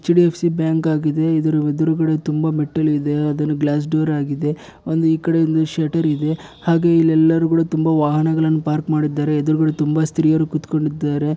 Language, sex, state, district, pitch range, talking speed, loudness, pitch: Kannada, male, Karnataka, Bellary, 150-160 Hz, 160 wpm, -18 LUFS, 155 Hz